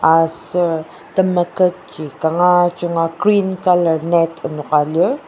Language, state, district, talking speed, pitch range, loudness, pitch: Ao, Nagaland, Dimapur, 100 wpm, 160-180 Hz, -16 LUFS, 170 Hz